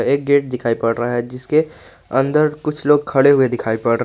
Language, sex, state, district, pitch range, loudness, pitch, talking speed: Hindi, male, Jharkhand, Garhwa, 120-150 Hz, -17 LUFS, 135 Hz, 220 wpm